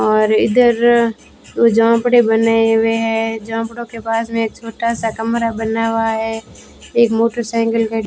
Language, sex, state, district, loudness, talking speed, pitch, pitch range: Hindi, female, Rajasthan, Bikaner, -16 LUFS, 140 wpm, 225 Hz, 225-230 Hz